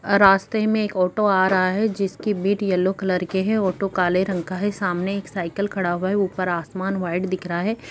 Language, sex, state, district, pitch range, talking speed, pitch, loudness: Hindi, female, Bihar, Sitamarhi, 185-200 Hz, 225 wpm, 190 Hz, -22 LUFS